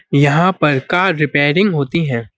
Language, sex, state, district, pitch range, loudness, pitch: Hindi, male, Uttar Pradesh, Budaun, 140-180 Hz, -14 LUFS, 150 Hz